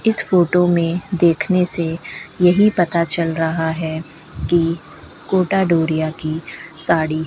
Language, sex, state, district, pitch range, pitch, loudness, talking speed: Hindi, female, Rajasthan, Bikaner, 160-180 Hz, 170 Hz, -17 LUFS, 130 wpm